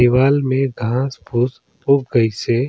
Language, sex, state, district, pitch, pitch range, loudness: Surgujia, male, Chhattisgarh, Sarguja, 125 Hz, 120-135 Hz, -18 LUFS